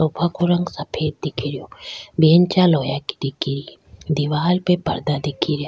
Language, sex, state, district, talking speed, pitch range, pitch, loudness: Rajasthani, female, Rajasthan, Churu, 170 wpm, 145-175 Hz, 160 Hz, -20 LUFS